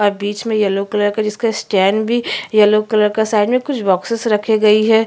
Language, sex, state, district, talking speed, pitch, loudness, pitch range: Hindi, female, Chhattisgarh, Kabirdham, 225 wpm, 215 Hz, -15 LUFS, 205-225 Hz